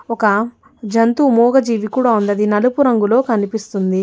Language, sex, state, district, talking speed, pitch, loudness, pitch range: Telugu, female, Telangana, Hyderabad, 120 wpm, 230 Hz, -15 LUFS, 210-250 Hz